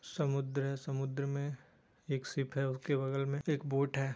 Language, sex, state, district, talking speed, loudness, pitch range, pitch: Hindi, male, Bihar, Bhagalpur, 185 wpm, -36 LUFS, 135-140 Hz, 140 Hz